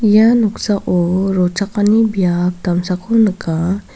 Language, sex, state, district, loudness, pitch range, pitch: Garo, female, Meghalaya, South Garo Hills, -15 LUFS, 180-215 Hz, 195 Hz